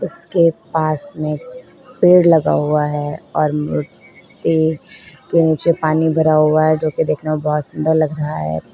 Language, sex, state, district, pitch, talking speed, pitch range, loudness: Hindi, female, Uttar Pradesh, Lalitpur, 155 Hz, 160 wpm, 150-165 Hz, -16 LUFS